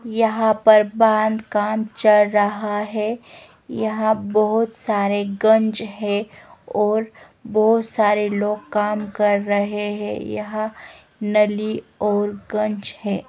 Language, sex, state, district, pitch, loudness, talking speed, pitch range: Hindi, female, Himachal Pradesh, Shimla, 210 Hz, -20 LUFS, 115 wpm, 205-220 Hz